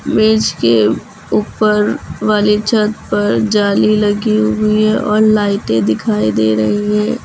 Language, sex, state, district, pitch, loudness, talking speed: Hindi, female, Uttar Pradesh, Lucknow, 210 Hz, -14 LUFS, 130 wpm